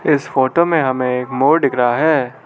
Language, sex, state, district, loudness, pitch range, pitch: Hindi, male, Arunachal Pradesh, Lower Dibang Valley, -15 LUFS, 125-155 Hz, 130 Hz